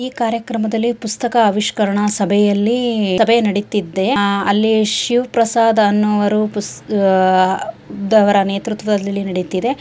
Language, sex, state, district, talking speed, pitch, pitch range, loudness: Kannada, female, Karnataka, Shimoga, 90 wpm, 210 Hz, 200-230 Hz, -16 LUFS